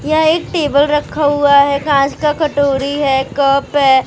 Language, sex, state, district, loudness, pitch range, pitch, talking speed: Hindi, female, Maharashtra, Mumbai Suburban, -13 LUFS, 275-300 Hz, 285 Hz, 220 wpm